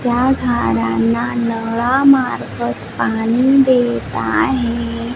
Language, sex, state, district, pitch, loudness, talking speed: Marathi, female, Maharashtra, Washim, 235 Hz, -16 LUFS, 80 wpm